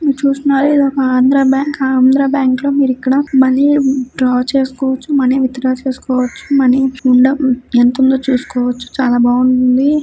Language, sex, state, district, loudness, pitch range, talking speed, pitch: Telugu, female, Andhra Pradesh, Krishna, -13 LUFS, 255-275 Hz, 110 wpm, 265 Hz